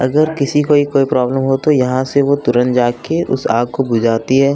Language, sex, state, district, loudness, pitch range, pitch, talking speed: Hindi, male, Bihar, West Champaran, -14 LUFS, 125-145 Hz, 135 Hz, 225 wpm